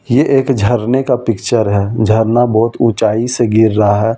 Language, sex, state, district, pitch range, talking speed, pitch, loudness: Hindi, male, Delhi, New Delhi, 110-120 Hz, 200 wpm, 115 Hz, -13 LUFS